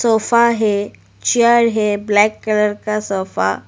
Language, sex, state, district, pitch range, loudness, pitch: Hindi, female, Arunachal Pradesh, Lower Dibang Valley, 205-230 Hz, -16 LUFS, 215 Hz